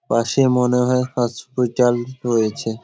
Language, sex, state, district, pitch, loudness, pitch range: Bengali, male, West Bengal, Dakshin Dinajpur, 125 Hz, -19 LUFS, 115-125 Hz